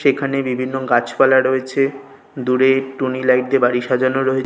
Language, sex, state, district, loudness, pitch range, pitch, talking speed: Bengali, male, West Bengal, North 24 Parganas, -17 LUFS, 130-135 Hz, 130 Hz, 160 wpm